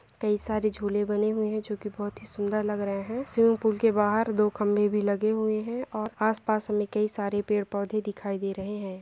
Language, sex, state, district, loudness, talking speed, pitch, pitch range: Hindi, female, Telangana, Nalgonda, -28 LUFS, 225 wpm, 210 Hz, 205-215 Hz